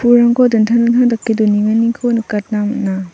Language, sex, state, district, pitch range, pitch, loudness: Garo, female, Meghalaya, South Garo Hills, 210-235 Hz, 225 Hz, -14 LUFS